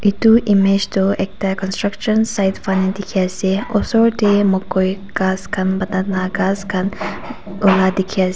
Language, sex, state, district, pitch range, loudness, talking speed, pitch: Nagamese, female, Nagaland, Kohima, 190-205 Hz, -17 LUFS, 145 wpm, 195 Hz